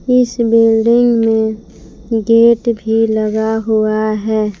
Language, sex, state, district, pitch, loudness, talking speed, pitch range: Hindi, female, Jharkhand, Palamu, 225 Hz, -13 LUFS, 105 wpm, 215-230 Hz